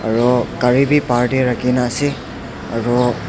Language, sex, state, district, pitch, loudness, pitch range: Nagamese, male, Nagaland, Dimapur, 125 Hz, -16 LUFS, 120-125 Hz